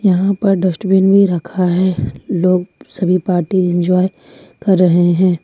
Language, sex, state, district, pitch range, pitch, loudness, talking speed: Hindi, female, Jharkhand, Ranchi, 175-190 Hz, 185 Hz, -14 LUFS, 145 wpm